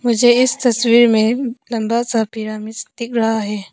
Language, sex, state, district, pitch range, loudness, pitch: Hindi, female, Arunachal Pradesh, Papum Pare, 220-240 Hz, -16 LUFS, 230 Hz